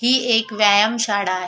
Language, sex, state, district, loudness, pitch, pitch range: Marathi, female, Maharashtra, Solapur, -17 LUFS, 215 Hz, 205-235 Hz